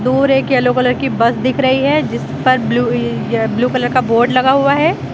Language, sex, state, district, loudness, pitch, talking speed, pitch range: Hindi, female, Uttar Pradesh, Lucknow, -14 LUFS, 255 Hz, 220 wpm, 240-265 Hz